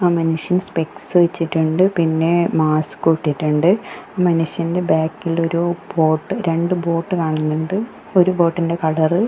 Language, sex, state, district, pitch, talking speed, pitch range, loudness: Malayalam, female, Kerala, Kasaragod, 165 Hz, 125 wpm, 160-180 Hz, -18 LUFS